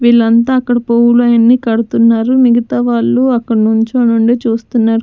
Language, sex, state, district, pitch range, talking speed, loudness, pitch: Telugu, female, Andhra Pradesh, Sri Satya Sai, 225-240 Hz, 120 wpm, -11 LUFS, 235 Hz